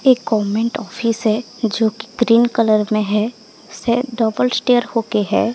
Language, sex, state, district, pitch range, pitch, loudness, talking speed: Hindi, female, Odisha, Sambalpur, 215-240 Hz, 225 Hz, -18 LUFS, 160 wpm